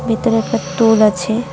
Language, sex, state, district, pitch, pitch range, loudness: Bengali, female, West Bengal, Cooch Behar, 225 Hz, 215-230 Hz, -15 LUFS